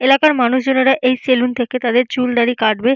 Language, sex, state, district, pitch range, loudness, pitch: Bengali, female, Jharkhand, Jamtara, 245-260 Hz, -15 LUFS, 255 Hz